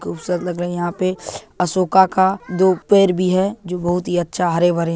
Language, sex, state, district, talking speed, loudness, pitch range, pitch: Hindi, male, Bihar, Purnia, 220 wpm, -18 LUFS, 175-185 Hz, 180 Hz